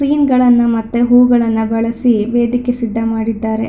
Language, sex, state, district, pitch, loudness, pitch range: Kannada, female, Karnataka, Shimoga, 235 Hz, -13 LUFS, 225-245 Hz